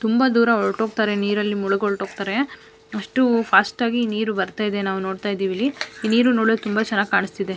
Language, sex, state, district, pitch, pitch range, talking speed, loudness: Kannada, female, Karnataka, Mysore, 210 Hz, 200-230 Hz, 190 wpm, -21 LUFS